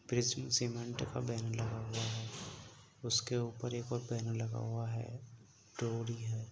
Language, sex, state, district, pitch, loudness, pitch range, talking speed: Hindi, male, Uttar Pradesh, Jalaun, 115 Hz, -38 LUFS, 115-120 Hz, 155 wpm